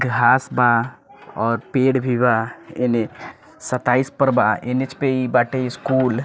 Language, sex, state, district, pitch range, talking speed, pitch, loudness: Bhojpuri, male, Bihar, Muzaffarpur, 120-130 Hz, 165 wpm, 125 Hz, -19 LUFS